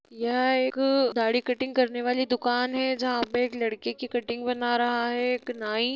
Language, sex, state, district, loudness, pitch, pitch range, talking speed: Hindi, female, Bihar, Sitamarhi, -26 LUFS, 245 Hz, 240-255 Hz, 190 wpm